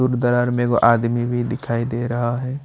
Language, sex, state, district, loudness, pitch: Hindi, male, Jharkhand, Ranchi, -20 LUFS, 120 Hz